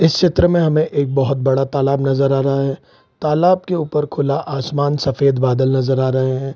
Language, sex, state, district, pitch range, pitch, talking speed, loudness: Hindi, male, Bihar, Saran, 135-155 Hz, 140 Hz, 210 wpm, -17 LUFS